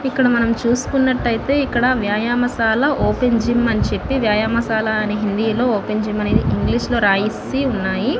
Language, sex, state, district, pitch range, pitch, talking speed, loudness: Telugu, female, Andhra Pradesh, Visakhapatnam, 215-250 Hz, 235 Hz, 170 wpm, -18 LUFS